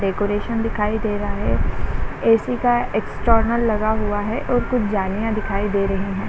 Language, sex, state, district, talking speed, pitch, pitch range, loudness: Hindi, female, Chhattisgarh, Raigarh, 170 wpm, 215 Hz, 205-230 Hz, -21 LUFS